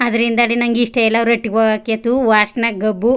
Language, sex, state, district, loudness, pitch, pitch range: Kannada, female, Karnataka, Chamarajanagar, -15 LUFS, 230 Hz, 220-240 Hz